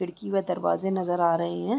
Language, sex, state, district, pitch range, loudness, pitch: Hindi, female, Chhattisgarh, Raigarh, 170-190 Hz, -26 LUFS, 180 Hz